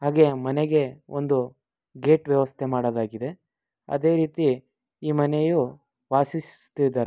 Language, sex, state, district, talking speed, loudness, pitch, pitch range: Kannada, male, Karnataka, Mysore, 95 wpm, -24 LUFS, 140 Hz, 130-155 Hz